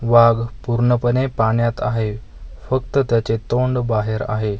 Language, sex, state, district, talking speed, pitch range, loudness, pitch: Marathi, male, Maharashtra, Mumbai Suburban, 120 wpm, 110-120 Hz, -19 LUFS, 115 Hz